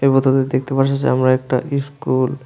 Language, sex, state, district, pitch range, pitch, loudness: Bengali, male, Tripura, West Tripura, 130-140 Hz, 135 Hz, -17 LUFS